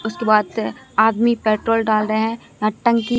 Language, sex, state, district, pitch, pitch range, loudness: Hindi, female, Bihar, Katihar, 225 Hz, 215-230 Hz, -18 LUFS